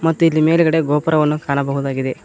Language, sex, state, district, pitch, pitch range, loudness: Kannada, male, Karnataka, Koppal, 150 Hz, 140-160 Hz, -16 LUFS